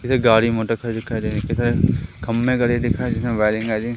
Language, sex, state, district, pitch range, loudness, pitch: Hindi, male, Madhya Pradesh, Umaria, 110-120 Hz, -20 LUFS, 115 Hz